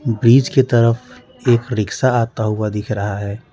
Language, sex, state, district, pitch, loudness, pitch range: Hindi, male, Bihar, West Champaran, 115 Hz, -17 LUFS, 105-120 Hz